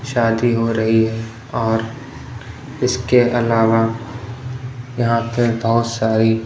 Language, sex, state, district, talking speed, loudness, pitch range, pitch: Hindi, male, Punjab, Pathankot, 100 wpm, -18 LUFS, 115-120 Hz, 115 Hz